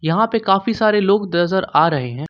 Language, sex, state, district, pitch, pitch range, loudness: Hindi, male, Jharkhand, Ranchi, 195 Hz, 165-215 Hz, -17 LUFS